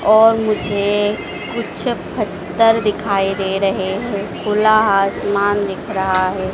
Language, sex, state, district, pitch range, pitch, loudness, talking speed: Hindi, female, Madhya Pradesh, Dhar, 195-215 Hz, 200 Hz, -17 LUFS, 120 wpm